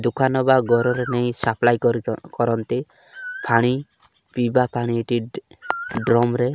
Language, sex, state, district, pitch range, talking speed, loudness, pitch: Odia, male, Odisha, Malkangiri, 120-130 Hz, 155 wpm, -21 LUFS, 120 Hz